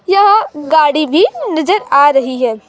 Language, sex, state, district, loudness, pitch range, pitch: Hindi, female, Chhattisgarh, Raipur, -11 LUFS, 285-405 Hz, 310 Hz